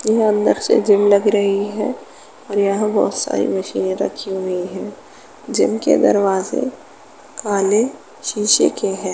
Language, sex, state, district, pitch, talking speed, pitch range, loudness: Hindi, female, Uttar Pradesh, Jalaun, 205 Hz, 150 wpm, 195-215 Hz, -17 LUFS